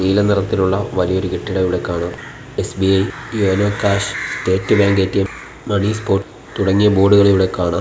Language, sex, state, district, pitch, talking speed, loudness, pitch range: Malayalam, male, Kerala, Kollam, 95 Hz, 140 wpm, -17 LUFS, 95-100 Hz